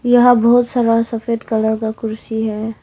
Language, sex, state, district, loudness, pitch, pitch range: Hindi, female, Arunachal Pradesh, Longding, -16 LUFS, 230 Hz, 220-240 Hz